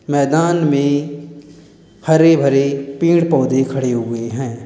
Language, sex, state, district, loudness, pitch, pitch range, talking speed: Hindi, male, Uttar Pradesh, Lalitpur, -15 LUFS, 145 Hz, 135-155 Hz, 115 wpm